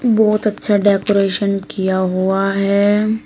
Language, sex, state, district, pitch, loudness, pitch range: Hindi, female, Uttar Pradesh, Shamli, 200 Hz, -16 LUFS, 195-210 Hz